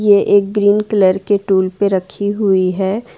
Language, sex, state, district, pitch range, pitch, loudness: Hindi, female, Jharkhand, Ranchi, 190-205 Hz, 200 Hz, -14 LUFS